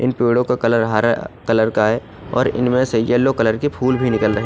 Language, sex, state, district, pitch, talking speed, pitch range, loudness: Hindi, male, Odisha, Khordha, 115 Hz, 255 wpm, 110-125 Hz, -17 LUFS